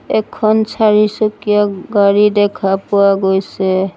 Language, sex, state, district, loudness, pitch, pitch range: Assamese, female, Assam, Sonitpur, -13 LUFS, 205 Hz, 195-215 Hz